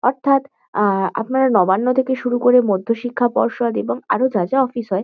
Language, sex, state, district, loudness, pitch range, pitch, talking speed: Bengali, female, West Bengal, Kolkata, -18 LUFS, 225-260 Hz, 245 Hz, 180 wpm